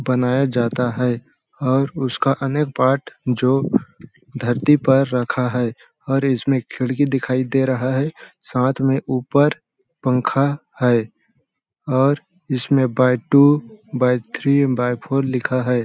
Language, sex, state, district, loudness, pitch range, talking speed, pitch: Hindi, male, Chhattisgarh, Balrampur, -19 LUFS, 125-140 Hz, 130 wpm, 130 Hz